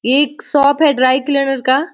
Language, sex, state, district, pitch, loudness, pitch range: Hindi, female, Bihar, Muzaffarpur, 275 Hz, -14 LUFS, 265-285 Hz